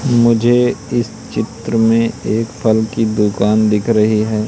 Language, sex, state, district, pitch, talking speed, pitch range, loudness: Hindi, male, Madhya Pradesh, Katni, 110 Hz, 145 wpm, 110-115 Hz, -15 LUFS